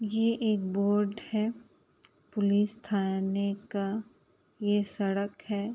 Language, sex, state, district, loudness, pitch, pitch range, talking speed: Hindi, female, Uttar Pradesh, Etah, -30 LUFS, 205 Hz, 200-215 Hz, 105 wpm